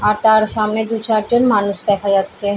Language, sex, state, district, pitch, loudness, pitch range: Bengali, female, West Bengal, Paschim Medinipur, 215 Hz, -15 LUFS, 200-220 Hz